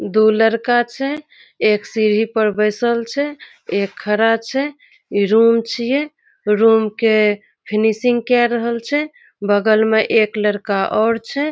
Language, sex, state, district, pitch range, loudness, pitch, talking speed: Maithili, female, Bihar, Saharsa, 215-245 Hz, -17 LUFS, 225 Hz, 135 wpm